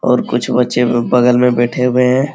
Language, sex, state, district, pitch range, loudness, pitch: Hindi, male, Uttar Pradesh, Muzaffarnagar, 120-125 Hz, -13 LUFS, 125 Hz